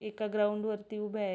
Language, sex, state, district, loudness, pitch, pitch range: Marathi, female, Maharashtra, Pune, -34 LUFS, 210 Hz, 210-215 Hz